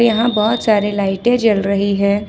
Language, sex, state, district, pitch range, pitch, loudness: Hindi, female, Jharkhand, Ranchi, 200-230 Hz, 210 Hz, -15 LUFS